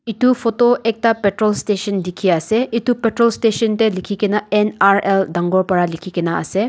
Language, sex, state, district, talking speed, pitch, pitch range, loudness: Nagamese, female, Nagaland, Dimapur, 160 wpm, 210 Hz, 190-230 Hz, -17 LUFS